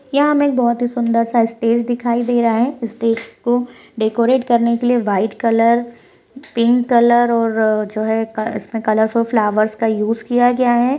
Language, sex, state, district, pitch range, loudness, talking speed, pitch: Hindi, female, Rajasthan, Churu, 225-245 Hz, -16 LUFS, 155 wpm, 235 Hz